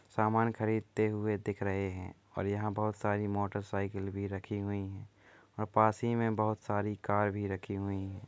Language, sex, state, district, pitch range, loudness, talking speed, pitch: Hindi, male, Uttar Pradesh, Muzaffarnagar, 100-110 Hz, -34 LUFS, 195 wpm, 105 Hz